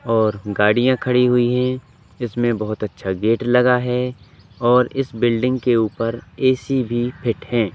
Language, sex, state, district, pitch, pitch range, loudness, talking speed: Hindi, male, Madhya Pradesh, Katni, 120 Hz, 110-125 Hz, -19 LUFS, 145 wpm